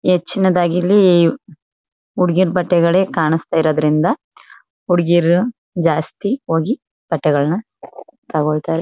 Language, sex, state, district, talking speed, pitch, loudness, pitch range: Kannada, female, Karnataka, Chamarajanagar, 75 wpm, 175 Hz, -16 LUFS, 160-185 Hz